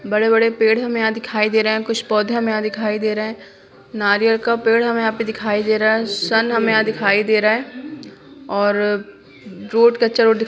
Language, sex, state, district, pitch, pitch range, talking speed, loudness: Hindi, female, Bihar, Jamui, 220 Hz, 215-230 Hz, 215 wpm, -17 LUFS